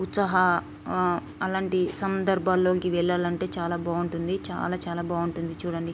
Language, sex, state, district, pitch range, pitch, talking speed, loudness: Telugu, female, Telangana, Nalgonda, 170-185 Hz, 180 Hz, 110 wpm, -27 LUFS